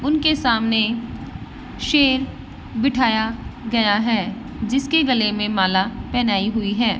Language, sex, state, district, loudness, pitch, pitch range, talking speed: Hindi, female, Uttar Pradesh, Varanasi, -19 LUFS, 230 Hz, 220-260 Hz, 110 wpm